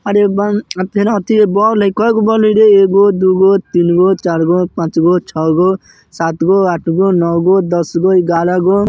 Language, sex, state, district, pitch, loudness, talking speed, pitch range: Bajjika, male, Bihar, Vaishali, 190 Hz, -12 LUFS, 160 wpm, 175-205 Hz